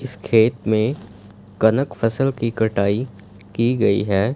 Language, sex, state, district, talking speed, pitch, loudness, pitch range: Hindi, male, Punjab, Fazilka, 140 wpm, 110 Hz, -19 LUFS, 100-120 Hz